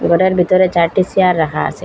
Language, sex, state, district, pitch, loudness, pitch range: Bengali, female, Assam, Hailakandi, 180 Hz, -13 LUFS, 170-185 Hz